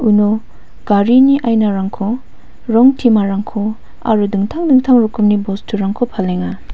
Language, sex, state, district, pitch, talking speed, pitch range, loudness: Garo, female, Meghalaya, West Garo Hills, 215 Hz, 100 wpm, 200-235 Hz, -14 LUFS